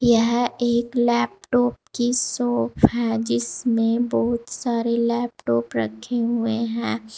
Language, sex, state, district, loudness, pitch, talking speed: Hindi, female, Uttar Pradesh, Saharanpur, -22 LUFS, 235 Hz, 110 wpm